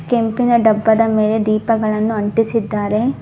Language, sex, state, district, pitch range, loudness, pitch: Kannada, female, Karnataka, Bangalore, 215-230 Hz, -16 LUFS, 220 Hz